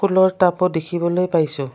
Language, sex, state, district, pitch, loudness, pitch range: Assamese, female, Assam, Kamrup Metropolitan, 175 Hz, -18 LUFS, 165-185 Hz